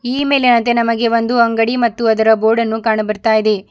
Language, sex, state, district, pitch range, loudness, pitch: Kannada, female, Karnataka, Bidar, 220-235 Hz, -14 LUFS, 230 Hz